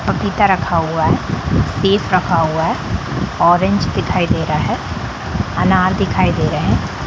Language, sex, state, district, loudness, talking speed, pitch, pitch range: Hindi, female, Bihar, Gopalganj, -16 LUFS, 155 wpm, 170 Hz, 160-195 Hz